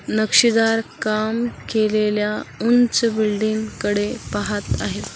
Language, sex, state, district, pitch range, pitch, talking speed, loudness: Marathi, female, Maharashtra, Washim, 210-225 Hz, 215 Hz, 95 wpm, -20 LUFS